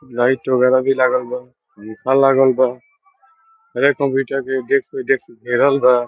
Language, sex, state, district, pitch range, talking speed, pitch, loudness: Bhojpuri, male, Bihar, Saran, 125-215 Hz, 90 wpm, 135 Hz, -17 LUFS